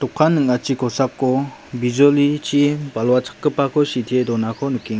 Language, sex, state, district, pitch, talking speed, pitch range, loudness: Garo, male, Meghalaya, West Garo Hills, 135 Hz, 95 wpm, 125-145 Hz, -18 LUFS